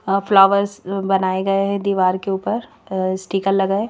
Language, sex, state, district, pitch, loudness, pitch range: Hindi, female, Madhya Pradesh, Bhopal, 195 Hz, -18 LUFS, 190-200 Hz